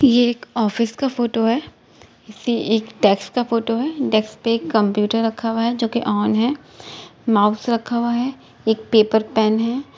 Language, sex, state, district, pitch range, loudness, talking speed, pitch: Hindi, female, Uttar Pradesh, Etah, 220-240 Hz, -19 LUFS, 200 wpm, 230 Hz